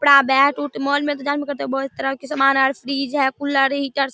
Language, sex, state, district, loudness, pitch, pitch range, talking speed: Hindi, female, Bihar, Darbhanga, -19 LUFS, 275 Hz, 270-285 Hz, 290 wpm